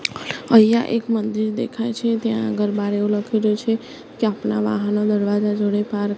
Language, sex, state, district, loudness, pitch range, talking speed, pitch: Gujarati, female, Gujarat, Gandhinagar, -20 LUFS, 205-225 Hz, 185 wpm, 210 Hz